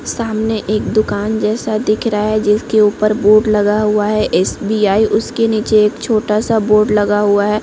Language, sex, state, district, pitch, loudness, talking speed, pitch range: Hindi, female, Chhattisgarh, Korba, 215 Hz, -14 LUFS, 180 wpm, 210-215 Hz